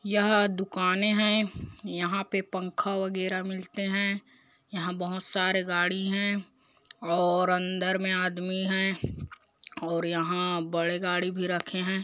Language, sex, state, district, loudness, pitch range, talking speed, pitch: Hindi, male, Chhattisgarh, Korba, -28 LUFS, 180-195 Hz, 130 wpm, 185 Hz